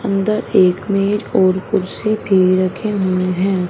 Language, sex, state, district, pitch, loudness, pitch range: Hindi, female, Punjab, Fazilka, 195 Hz, -16 LUFS, 185-205 Hz